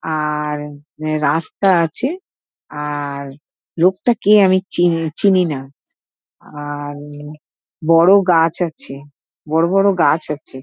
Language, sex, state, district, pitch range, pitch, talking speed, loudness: Bengali, female, West Bengal, North 24 Parganas, 145-180 Hz, 155 Hz, 105 wpm, -17 LUFS